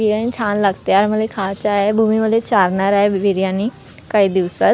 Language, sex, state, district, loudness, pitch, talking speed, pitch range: Marathi, female, Maharashtra, Gondia, -16 LUFS, 200 Hz, 190 wpm, 190-215 Hz